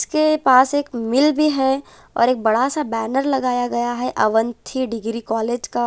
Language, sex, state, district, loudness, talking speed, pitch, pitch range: Hindi, female, Chhattisgarh, Raipur, -19 LUFS, 195 wpm, 250 Hz, 235-270 Hz